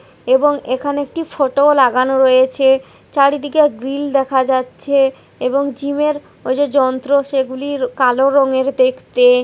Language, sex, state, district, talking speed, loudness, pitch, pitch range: Bengali, female, West Bengal, Kolkata, 135 wpm, -15 LUFS, 275 Hz, 260-285 Hz